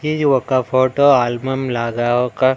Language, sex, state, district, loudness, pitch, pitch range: Telugu, male, Andhra Pradesh, Annamaya, -16 LUFS, 130 Hz, 120-135 Hz